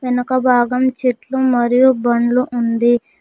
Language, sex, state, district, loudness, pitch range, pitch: Telugu, female, Telangana, Mahabubabad, -15 LUFS, 240-255 Hz, 250 Hz